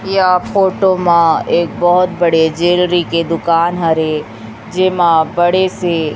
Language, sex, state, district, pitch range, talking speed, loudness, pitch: Hindi, female, Chhattisgarh, Raipur, 165-180 Hz, 145 wpm, -13 LUFS, 175 Hz